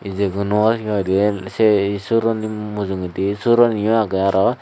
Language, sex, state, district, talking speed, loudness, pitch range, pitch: Chakma, male, Tripura, Dhalai, 115 wpm, -18 LUFS, 100-110 Hz, 105 Hz